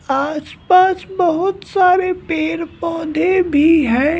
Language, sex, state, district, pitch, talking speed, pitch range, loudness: Hindi, male, Bihar, Patna, 335 Hz, 100 wpm, 310-370 Hz, -16 LUFS